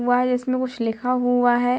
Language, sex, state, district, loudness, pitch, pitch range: Hindi, female, Bihar, Muzaffarpur, -21 LUFS, 245 Hz, 245-250 Hz